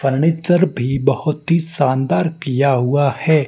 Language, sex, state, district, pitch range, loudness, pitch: Hindi, male, Rajasthan, Barmer, 135-165 Hz, -17 LUFS, 145 Hz